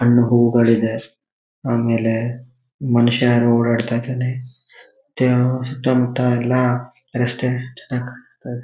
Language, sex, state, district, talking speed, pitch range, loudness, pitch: Kannada, male, Karnataka, Shimoga, 70 wpm, 120-125 Hz, -18 LUFS, 125 Hz